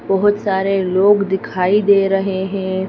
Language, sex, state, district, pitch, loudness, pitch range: Hindi, female, Madhya Pradesh, Bhopal, 195 Hz, -16 LUFS, 190-200 Hz